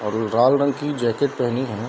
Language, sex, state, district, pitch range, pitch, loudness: Hindi, male, Bihar, Darbhanga, 115-140 Hz, 120 Hz, -20 LUFS